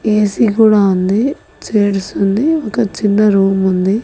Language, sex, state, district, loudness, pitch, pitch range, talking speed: Telugu, female, Andhra Pradesh, Annamaya, -13 LUFS, 210 Hz, 195-225 Hz, 135 wpm